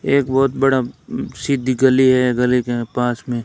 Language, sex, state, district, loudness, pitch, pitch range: Hindi, male, Rajasthan, Bikaner, -17 LUFS, 130 Hz, 125-135 Hz